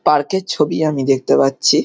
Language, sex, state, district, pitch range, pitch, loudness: Bengali, male, West Bengal, Malda, 135-155 Hz, 145 Hz, -16 LUFS